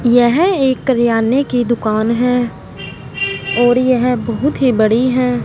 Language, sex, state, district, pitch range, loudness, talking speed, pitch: Hindi, female, Punjab, Fazilka, 235-255 Hz, -14 LUFS, 130 wpm, 245 Hz